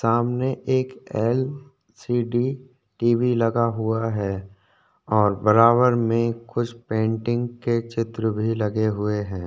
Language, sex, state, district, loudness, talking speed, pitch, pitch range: Hindi, male, Chhattisgarh, Korba, -23 LUFS, 115 wpm, 115 Hz, 110-120 Hz